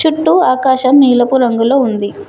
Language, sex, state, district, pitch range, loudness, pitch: Telugu, female, Telangana, Mahabubabad, 245-310 Hz, -11 LUFS, 260 Hz